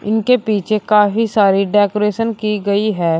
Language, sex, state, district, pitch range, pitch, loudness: Hindi, male, Uttar Pradesh, Shamli, 205-215 Hz, 210 Hz, -15 LUFS